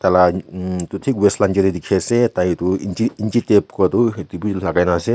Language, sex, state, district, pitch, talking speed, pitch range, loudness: Nagamese, male, Nagaland, Kohima, 95 Hz, 210 wpm, 90-110 Hz, -18 LUFS